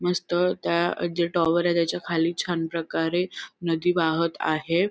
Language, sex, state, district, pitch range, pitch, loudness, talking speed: Marathi, female, Maharashtra, Sindhudurg, 165-175 Hz, 170 Hz, -25 LUFS, 110 wpm